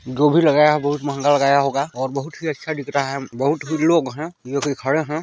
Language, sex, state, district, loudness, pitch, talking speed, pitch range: Hindi, male, Chhattisgarh, Balrampur, -19 LUFS, 145 Hz, 265 wpm, 140-155 Hz